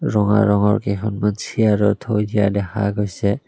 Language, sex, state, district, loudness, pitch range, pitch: Assamese, male, Assam, Kamrup Metropolitan, -19 LUFS, 100-105 Hz, 105 Hz